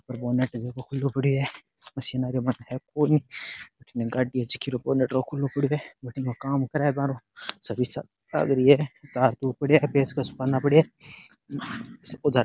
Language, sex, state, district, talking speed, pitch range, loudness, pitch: Rajasthani, male, Rajasthan, Churu, 160 wpm, 125-140 Hz, -25 LUFS, 130 Hz